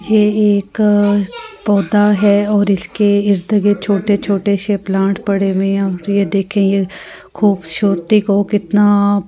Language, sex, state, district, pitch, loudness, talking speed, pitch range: Hindi, female, Delhi, New Delhi, 205 Hz, -14 LUFS, 125 wpm, 195-205 Hz